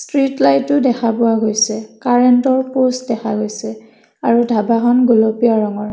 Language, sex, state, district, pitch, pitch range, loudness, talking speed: Assamese, female, Assam, Kamrup Metropolitan, 230 Hz, 220-245 Hz, -15 LUFS, 130 wpm